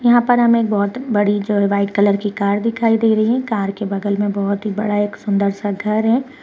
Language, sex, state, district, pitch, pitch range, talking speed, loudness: Hindi, female, Uttarakhand, Uttarkashi, 205 Hz, 200-225 Hz, 260 wpm, -17 LUFS